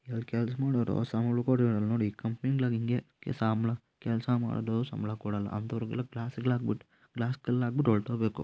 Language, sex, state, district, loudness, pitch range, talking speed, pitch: Kannada, male, Karnataka, Mysore, -31 LUFS, 115-125 Hz, 180 wpm, 115 Hz